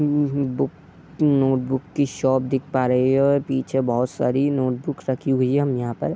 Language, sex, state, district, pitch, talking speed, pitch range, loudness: Hindi, male, Bihar, Darbhanga, 135 Hz, 235 wpm, 130-140 Hz, -21 LUFS